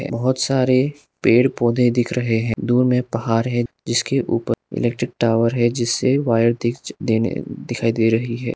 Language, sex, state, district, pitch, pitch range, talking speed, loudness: Hindi, male, Arunachal Pradesh, Lower Dibang Valley, 120 Hz, 115-125 Hz, 170 wpm, -19 LUFS